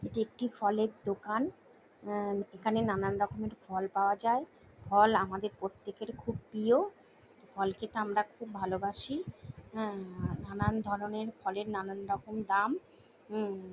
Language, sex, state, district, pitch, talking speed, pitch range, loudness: Bengali, female, West Bengal, Jalpaiguri, 205 Hz, 110 wpm, 195-220 Hz, -34 LUFS